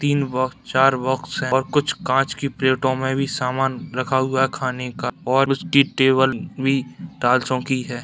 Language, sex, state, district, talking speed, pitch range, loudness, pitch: Hindi, male, Bihar, Darbhanga, 170 wpm, 130-135 Hz, -20 LUFS, 130 Hz